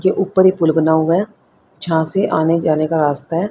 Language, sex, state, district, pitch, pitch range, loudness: Hindi, female, Haryana, Rohtak, 165 Hz, 160-185 Hz, -16 LUFS